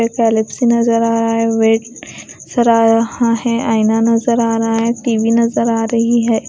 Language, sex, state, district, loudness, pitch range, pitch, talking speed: Hindi, female, Bihar, West Champaran, -14 LUFS, 225-235 Hz, 230 Hz, 185 wpm